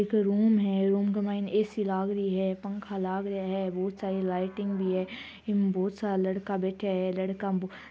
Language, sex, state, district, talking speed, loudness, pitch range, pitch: Marwari, female, Rajasthan, Churu, 195 wpm, -29 LUFS, 190-205 Hz, 195 Hz